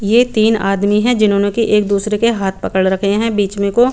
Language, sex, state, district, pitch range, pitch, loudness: Hindi, female, Chandigarh, Chandigarh, 200-225 Hz, 210 Hz, -14 LUFS